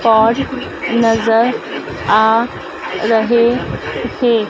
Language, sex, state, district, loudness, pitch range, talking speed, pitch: Hindi, female, Madhya Pradesh, Dhar, -15 LUFS, 220-235 Hz, 65 wpm, 225 Hz